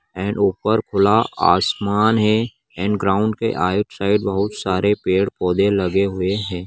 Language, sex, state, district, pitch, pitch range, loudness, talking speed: Magahi, male, Bihar, Gaya, 100 Hz, 95-105 Hz, -19 LUFS, 160 wpm